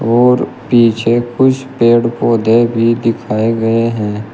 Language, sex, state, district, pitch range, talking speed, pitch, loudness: Hindi, male, Uttar Pradesh, Shamli, 115-120 Hz, 125 wpm, 115 Hz, -13 LUFS